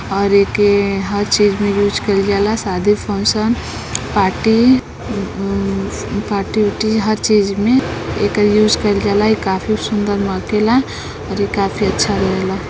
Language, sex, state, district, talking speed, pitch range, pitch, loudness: Bhojpuri, female, Uttar Pradesh, Deoria, 135 wpm, 200-215 Hz, 205 Hz, -16 LUFS